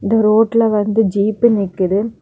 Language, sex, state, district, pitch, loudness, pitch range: Tamil, female, Tamil Nadu, Kanyakumari, 215 Hz, -15 LUFS, 200-225 Hz